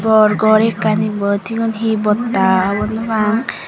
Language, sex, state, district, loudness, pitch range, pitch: Chakma, female, Tripura, Dhalai, -15 LUFS, 210-225 Hz, 215 Hz